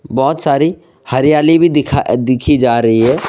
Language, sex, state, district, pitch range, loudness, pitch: Hindi, male, Assam, Sonitpur, 125-155 Hz, -12 LUFS, 140 Hz